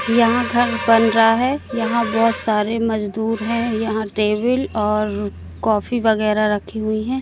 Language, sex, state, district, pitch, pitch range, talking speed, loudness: Hindi, female, Madhya Pradesh, Katni, 225 Hz, 215-235 Hz, 150 wpm, -18 LUFS